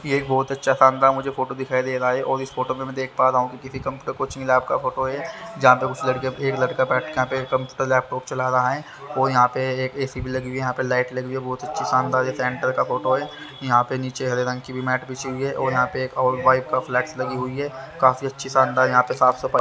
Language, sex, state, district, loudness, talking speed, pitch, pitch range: Hindi, male, Haryana, Charkhi Dadri, -22 LUFS, 340 wpm, 130 Hz, 130-135 Hz